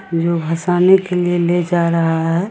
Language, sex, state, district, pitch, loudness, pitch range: Hindi, female, Bihar, Samastipur, 175 Hz, -16 LUFS, 165-180 Hz